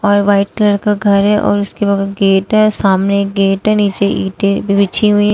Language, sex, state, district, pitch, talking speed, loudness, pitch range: Hindi, female, Uttar Pradesh, Shamli, 200 Hz, 200 wpm, -13 LUFS, 200-210 Hz